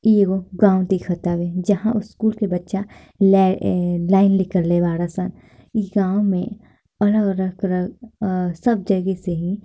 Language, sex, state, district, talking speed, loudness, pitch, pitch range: Bhojpuri, female, Bihar, Gopalganj, 150 wpm, -20 LUFS, 190 Hz, 180-205 Hz